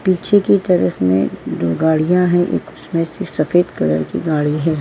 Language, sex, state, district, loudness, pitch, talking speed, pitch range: Hindi, female, Uttar Pradesh, Varanasi, -16 LUFS, 160 Hz, 185 wpm, 150-180 Hz